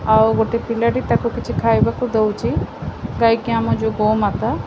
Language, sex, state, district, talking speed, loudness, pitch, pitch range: Odia, female, Odisha, Khordha, 140 wpm, -18 LUFS, 225 Hz, 220-230 Hz